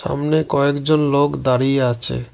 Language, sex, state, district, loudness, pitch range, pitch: Bengali, male, West Bengal, Cooch Behar, -17 LUFS, 125-145 Hz, 140 Hz